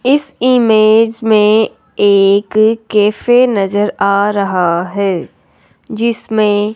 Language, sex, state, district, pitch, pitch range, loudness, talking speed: Hindi, male, Rajasthan, Jaipur, 215 Hz, 200-230 Hz, -12 LUFS, 100 wpm